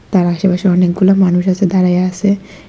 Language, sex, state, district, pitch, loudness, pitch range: Bengali, female, Tripura, West Tripura, 185 Hz, -13 LUFS, 180-195 Hz